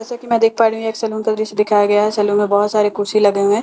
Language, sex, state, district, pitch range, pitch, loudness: Hindi, female, Bihar, Katihar, 205-225 Hz, 215 Hz, -16 LUFS